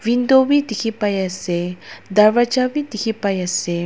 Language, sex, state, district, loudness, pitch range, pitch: Nagamese, female, Nagaland, Dimapur, -18 LUFS, 185-240 Hz, 220 Hz